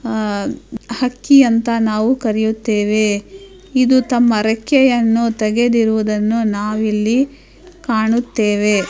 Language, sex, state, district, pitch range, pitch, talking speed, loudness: Kannada, female, Karnataka, Dharwad, 215-250 Hz, 225 Hz, 80 wpm, -15 LUFS